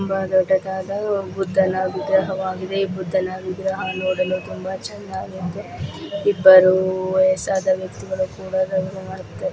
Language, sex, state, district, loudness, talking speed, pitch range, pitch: Kannada, female, Karnataka, Belgaum, -20 LUFS, 80 wpm, 185-195 Hz, 190 Hz